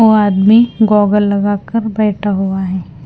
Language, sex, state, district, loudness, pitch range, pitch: Hindi, female, Punjab, Fazilka, -13 LUFS, 195-215 Hz, 205 Hz